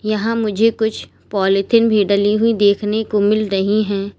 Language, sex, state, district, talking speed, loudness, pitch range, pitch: Hindi, female, Uttar Pradesh, Lalitpur, 170 wpm, -16 LUFS, 200-220 Hz, 210 Hz